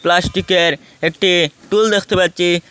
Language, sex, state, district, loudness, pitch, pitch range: Bengali, male, Assam, Hailakandi, -15 LUFS, 175 Hz, 170-190 Hz